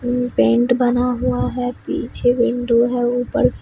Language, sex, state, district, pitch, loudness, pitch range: Hindi, female, Bihar, Katihar, 245 Hz, -18 LUFS, 235-245 Hz